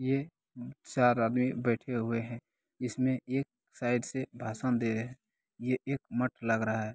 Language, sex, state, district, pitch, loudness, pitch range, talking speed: Hindi, male, Bihar, Kishanganj, 125 Hz, -32 LUFS, 115-130 Hz, 165 wpm